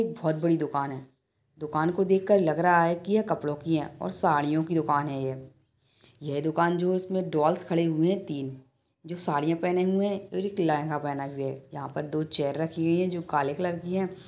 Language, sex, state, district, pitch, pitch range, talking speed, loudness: Hindi, male, Bihar, Kishanganj, 160 Hz, 145-180 Hz, 230 wpm, -27 LUFS